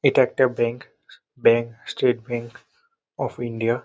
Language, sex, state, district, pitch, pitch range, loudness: Bengali, male, West Bengal, North 24 Parganas, 120 Hz, 115-125 Hz, -23 LUFS